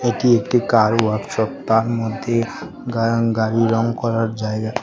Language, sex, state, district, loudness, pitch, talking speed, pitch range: Bengali, male, Tripura, West Tripura, -19 LUFS, 115 Hz, 135 wpm, 110-115 Hz